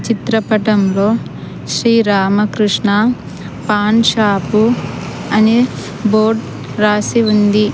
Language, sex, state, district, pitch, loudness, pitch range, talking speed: Telugu, female, Andhra Pradesh, Sri Satya Sai, 215 Hz, -14 LUFS, 205-225 Hz, 70 wpm